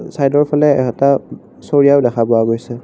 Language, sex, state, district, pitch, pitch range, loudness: Assamese, male, Assam, Kamrup Metropolitan, 140 Hz, 120-145 Hz, -14 LUFS